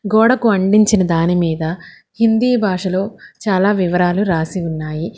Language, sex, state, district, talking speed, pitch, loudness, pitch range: Telugu, female, Telangana, Hyderabad, 115 wpm, 190 Hz, -16 LUFS, 175-215 Hz